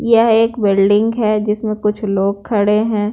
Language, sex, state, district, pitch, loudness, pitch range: Hindi, female, Bihar, Patna, 210 Hz, -15 LUFS, 205-225 Hz